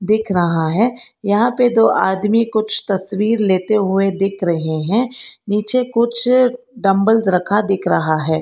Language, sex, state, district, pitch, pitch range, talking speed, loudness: Hindi, female, Karnataka, Bangalore, 210 Hz, 190-230 Hz, 150 wpm, -16 LUFS